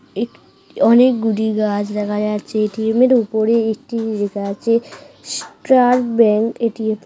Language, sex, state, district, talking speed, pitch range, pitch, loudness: Bengali, female, West Bengal, North 24 Parganas, 120 wpm, 210-230 Hz, 220 Hz, -17 LUFS